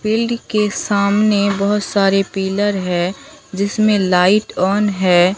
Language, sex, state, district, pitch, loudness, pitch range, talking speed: Hindi, female, Bihar, Katihar, 200 Hz, -16 LUFS, 190-210 Hz, 125 wpm